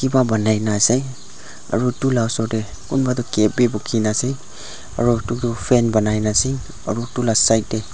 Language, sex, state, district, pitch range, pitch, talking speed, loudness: Nagamese, male, Nagaland, Dimapur, 110-125 Hz, 115 Hz, 210 wpm, -19 LUFS